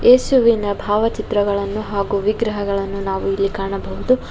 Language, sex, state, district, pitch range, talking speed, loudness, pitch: Kannada, female, Karnataka, Bangalore, 200-215 Hz, 95 wpm, -19 LUFS, 205 Hz